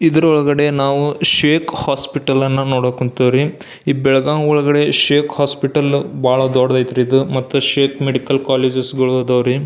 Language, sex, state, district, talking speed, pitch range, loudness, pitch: Kannada, male, Karnataka, Belgaum, 145 wpm, 130-145 Hz, -15 LUFS, 135 Hz